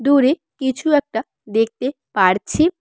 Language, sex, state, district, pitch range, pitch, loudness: Bengali, female, West Bengal, Cooch Behar, 225-295 Hz, 265 Hz, -19 LUFS